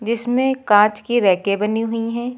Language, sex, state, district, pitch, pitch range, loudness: Hindi, female, Uttar Pradesh, Lucknow, 230 Hz, 210-240 Hz, -18 LUFS